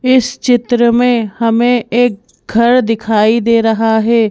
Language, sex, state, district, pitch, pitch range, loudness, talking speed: Hindi, female, Madhya Pradesh, Bhopal, 235 Hz, 225-245 Hz, -12 LUFS, 140 wpm